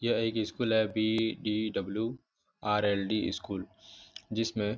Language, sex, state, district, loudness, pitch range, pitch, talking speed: Hindi, male, Jharkhand, Jamtara, -31 LUFS, 105-115 Hz, 110 Hz, 100 wpm